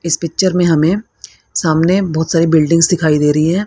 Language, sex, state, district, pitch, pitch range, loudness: Hindi, female, Haryana, Rohtak, 165 Hz, 160-180 Hz, -13 LUFS